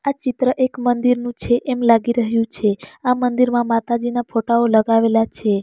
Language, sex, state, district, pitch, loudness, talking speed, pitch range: Gujarati, female, Gujarat, Valsad, 240 Hz, -18 LUFS, 160 wpm, 225-250 Hz